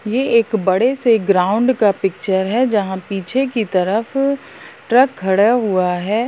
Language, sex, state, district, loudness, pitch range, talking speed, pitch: Hindi, female, Bihar, Darbhanga, -16 LUFS, 190-245 Hz, 155 wpm, 215 Hz